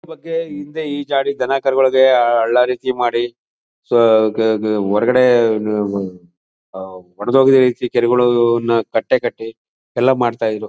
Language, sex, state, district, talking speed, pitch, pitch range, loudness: Kannada, male, Karnataka, Mysore, 125 wpm, 120 Hz, 110-130 Hz, -16 LUFS